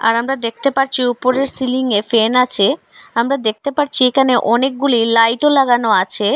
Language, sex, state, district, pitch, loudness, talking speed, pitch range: Bengali, female, Assam, Hailakandi, 250 Hz, -15 LUFS, 150 wpm, 230-270 Hz